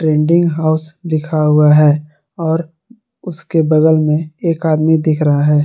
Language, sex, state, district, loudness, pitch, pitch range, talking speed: Hindi, male, Jharkhand, Garhwa, -14 LUFS, 155 Hz, 150-165 Hz, 140 wpm